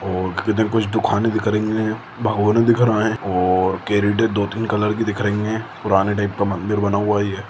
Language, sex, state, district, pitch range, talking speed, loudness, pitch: Hindi, male, Chhattisgarh, Sukma, 100-110 Hz, 200 wpm, -19 LUFS, 105 Hz